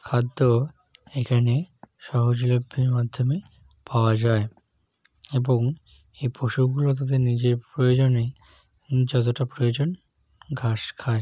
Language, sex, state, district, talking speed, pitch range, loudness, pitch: Bengali, male, West Bengal, Jalpaiguri, 95 wpm, 120-130 Hz, -24 LUFS, 125 Hz